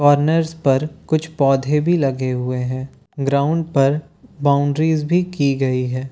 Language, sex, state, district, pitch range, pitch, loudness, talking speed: Hindi, male, Bihar, Katihar, 135-155 Hz, 145 Hz, -19 LUFS, 135 wpm